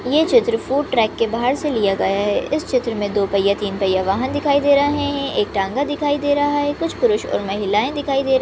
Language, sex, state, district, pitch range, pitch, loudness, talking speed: Hindi, female, Maharashtra, Nagpur, 205-290 Hz, 275 Hz, -19 LUFS, 240 wpm